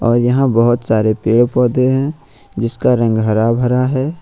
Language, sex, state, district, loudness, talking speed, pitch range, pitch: Hindi, male, Jharkhand, Ranchi, -14 LUFS, 170 wpm, 115-130 Hz, 120 Hz